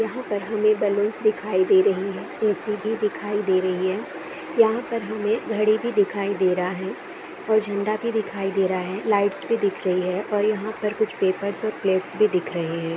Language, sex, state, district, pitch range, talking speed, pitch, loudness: Hindi, female, Uttar Pradesh, Etah, 190-215 Hz, 215 wpm, 205 Hz, -23 LUFS